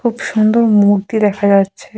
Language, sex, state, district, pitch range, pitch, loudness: Bengali, female, West Bengal, Jalpaiguri, 200-225 Hz, 210 Hz, -13 LUFS